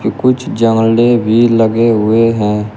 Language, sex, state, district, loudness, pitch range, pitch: Hindi, male, Uttar Pradesh, Shamli, -11 LUFS, 110-115 Hz, 115 Hz